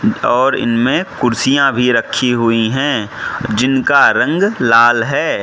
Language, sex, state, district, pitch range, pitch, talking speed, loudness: Hindi, male, Mizoram, Aizawl, 120-135 Hz, 125 Hz, 120 wpm, -13 LUFS